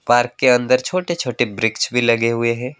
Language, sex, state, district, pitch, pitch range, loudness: Hindi, male, West Bengal, Alipurduar, 120 Hz, 115-130 Hz, -18 LUFS